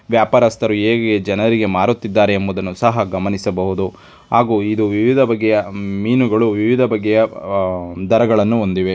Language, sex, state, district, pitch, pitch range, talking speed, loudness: Kannada, male, Karnataka, Dharwad, 105 Hz, 95-115 Hz, 105 wpm, -16 LUFS